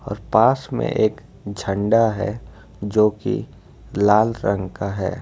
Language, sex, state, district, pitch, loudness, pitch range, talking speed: Hindi, male, Jharkhand, Ranchi, 105 Hz, -20 LUFS, 100-110 Hz, 140 wpm